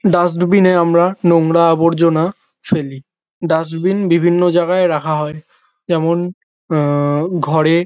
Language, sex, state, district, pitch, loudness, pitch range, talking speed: Bengali, male, West Bengal, North 24 Parganas, 170 Hz, -15 LUFS, 160-180 Hz, 105 wpm